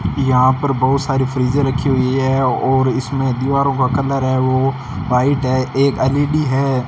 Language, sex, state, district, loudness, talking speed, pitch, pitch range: Hindi, male, Rajasthan, Bikaner, -16 LUFS, 175 wpm, 135 Hz, 130-135 Hz